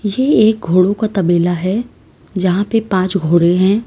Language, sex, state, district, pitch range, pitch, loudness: Hindi, female, Uttar Pradesh, Lalitpur, 180-215 Hz, 190 Hz, -14 LUFS